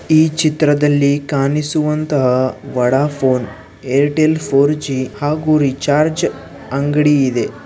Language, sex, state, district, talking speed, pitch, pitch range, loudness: Kannada, male, Karnataka, Belgaum, 85 wpm, 145 Hz, 130-150 Hz, -15 LUFS